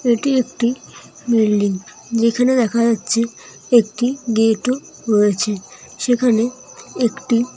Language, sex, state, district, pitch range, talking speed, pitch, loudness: Bengali, female, West Bengal, North 24 Parganas, 220-245 Hz, 95 wpm, 235 Hz, -18 LUFS